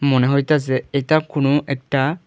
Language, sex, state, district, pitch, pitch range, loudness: Bengali, male, Tripura, Dhalai, 140 Hz, 135-150 Hz, -19 LUFS